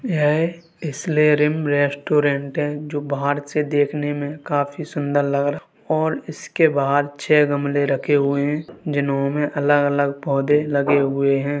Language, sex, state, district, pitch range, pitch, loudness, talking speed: Hindi, male, Uttar Pradesh, Varanasi, 140-150 Hz, 145 Hz, -20 LUFS, 140 wpm